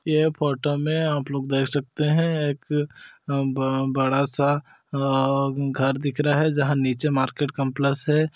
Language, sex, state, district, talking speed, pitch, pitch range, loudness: Hindi, male, Chhattisgarh, Korba, 160 wpm, 140 Hz, 135-150 Hz, -23 LUFS